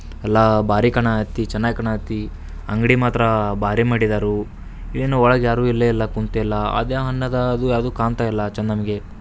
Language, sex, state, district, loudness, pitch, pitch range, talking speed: Kannada, male, Karnataka, Belgaum, -19 LUFS, 110 Hz, 105-120 Hz, 145 wpm